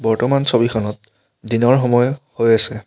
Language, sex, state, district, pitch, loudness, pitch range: Assamese, male, Assam, Kamrup Metropolitan, 115 Hz, -16 LUFS, 110-125 Hz